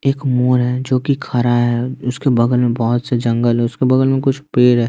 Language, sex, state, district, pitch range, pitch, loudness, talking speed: Hindi, male, Bihar, West Champaran, 120-130 Hz, 125 Hz, -16 LUFS, 245 wpm